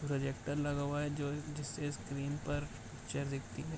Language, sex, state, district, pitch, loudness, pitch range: Hindi, male, Bihar, Bhagalpur, 145 Hz, -39 LUFS, 135-145 Hz